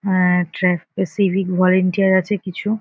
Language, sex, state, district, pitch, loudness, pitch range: Bengali, female, West Bengal, North 24 Parganas, 185 Hz, -18 LUFS, 180-195 Hz